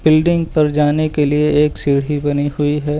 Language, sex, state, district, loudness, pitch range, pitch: Hindi, male, Uttar Pradesh, Lucknow, -16 LUFS, 145-155 Hz, 150 Hz